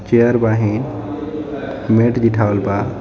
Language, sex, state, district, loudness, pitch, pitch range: Bhojpuri, male, Jharkhand, Palamu, -17 LUFS, 115 Hz, 105-135 Hz